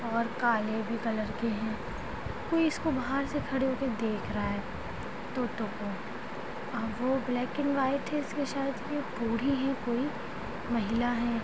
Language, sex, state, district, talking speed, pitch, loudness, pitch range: Hindi, female, Chhattisgarh, Sarguja, 165 wpm, 245 Hz, -32 LUFS, 230-275 Hz